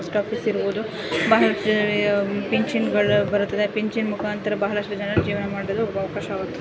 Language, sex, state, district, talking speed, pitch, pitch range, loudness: Kannada, female, Karnataka, Dharwad, 125 wpm, 205 Hz, 200-210 Hz, -22 LUFS